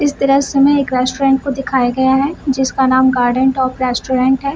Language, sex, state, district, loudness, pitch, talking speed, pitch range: Hindi, female, Bihar, Samastipur, -14 LUFS, 265 Hz, 195 wpm, 260-275 Hz